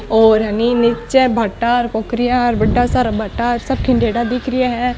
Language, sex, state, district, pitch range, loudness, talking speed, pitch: Marwari, female, Rajasthan, Nagaur, 230-245 Hz, -15 LUFS, 135 wpm, 240 Hz